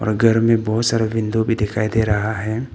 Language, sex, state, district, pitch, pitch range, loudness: Hindi, male, Arunachal Pradesh, Papum Pare, 110 Hz, 110-115 Hz, -18 LUFS